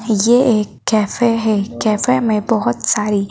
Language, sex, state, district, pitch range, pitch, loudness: Hindi, female, Madhya Pradesh, Bhopal, 210-235 Hz, 220 Hz, -16 LUFS